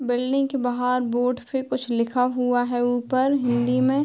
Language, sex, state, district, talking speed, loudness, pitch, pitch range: Hindi, female, Bihar, Darbhanga, 180 wpm, -23 LUFS, 250 Hz, 245-260 Hz